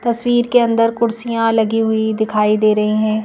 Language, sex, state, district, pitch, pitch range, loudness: Hindi, female, Madhya Pradesh, Bhopal, 225 Hz, 215-235 Hz, -16 LUFS